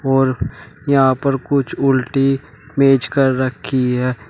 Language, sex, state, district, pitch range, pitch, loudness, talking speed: Hindi, male, Uttar Pradesh, Shamli, 125-140 Hz, 135 Hz, -17 LUFS, 125 wpm